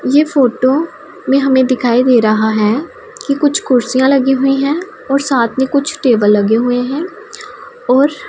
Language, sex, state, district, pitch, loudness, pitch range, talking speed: Hindi, female, Punjab, Pathankot, 270 Hz, -13 LUFS, 245-300 Hz, 165 wpm